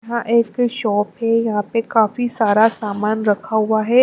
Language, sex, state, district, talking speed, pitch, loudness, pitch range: Hindi, female, Maharashtra, Mumbai Suburban, 180 wpm, 225 Hz, -18 LUFS, 215-235 Hz